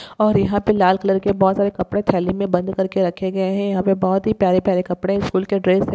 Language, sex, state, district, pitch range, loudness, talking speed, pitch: Hindi, female, Maharashtra, Solapur, 185-200 Hz, -19 LUFS, 270 wpm, 190 Hz